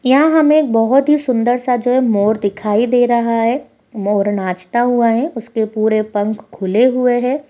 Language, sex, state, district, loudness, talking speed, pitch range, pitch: Hindi, female, Bihar, Purnia, -15 LUFS, 190 wpm, 215-255 Hz, 235 Hz